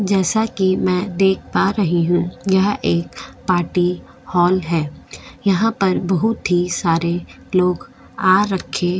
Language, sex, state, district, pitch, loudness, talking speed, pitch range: Hindi, female, Goa, North and South Goa, 185 Hz, -18 LUFS, 140 wpm, 175-195 Hz